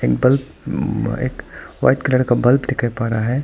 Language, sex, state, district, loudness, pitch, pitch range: Hindi, male, Arunachal Pradesh, Lower Dibang Valley, -18 LUFS, 125 Hz, 115-135 Hz